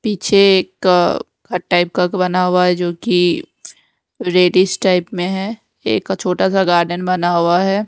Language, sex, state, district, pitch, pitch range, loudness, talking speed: Hindi, female, Odisha, Nuapada, 180 Hz, 175-190 Hz, -15 LUFS, 135 wpm